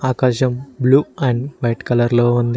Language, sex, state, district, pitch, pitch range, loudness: Telugu, male, Telangana, Mahabubabad, 125 Hz, 120-130 Hz, -17 LUFS